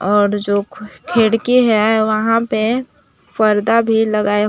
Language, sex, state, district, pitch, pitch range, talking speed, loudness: Hindi, female, Jharkhand, Palamu, 220 Hz, 210-230 Hz, 120 wpm, -15 LUFS